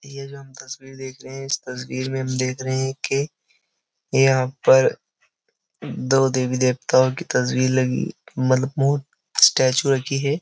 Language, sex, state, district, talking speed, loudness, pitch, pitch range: Hindi, male, Uttar Pradesh, Jyotiba Phule Nagar, 160 wpm, -20 LUFS, 130 Hz, 130-135 Hz